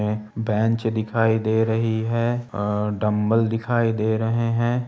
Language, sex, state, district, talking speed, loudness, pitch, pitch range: Hindi, male, Chhattisgarh, Bilaspur, 135 wpm, -22 LUFS, 110 Hz, 110-115 Hz